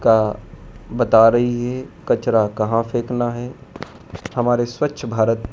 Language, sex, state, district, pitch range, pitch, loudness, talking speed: Hindi, male, Madhya Pradesh, Dhar, 110-120 Hz, 115 Hz, -19 LUFS, 120 wpm